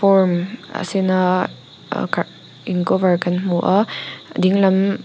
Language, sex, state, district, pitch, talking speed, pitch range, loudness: Mizo, female, Mizoram, Aizawl, 185 Hz, 120 wpm, 180-195 Hz, -19 LUFS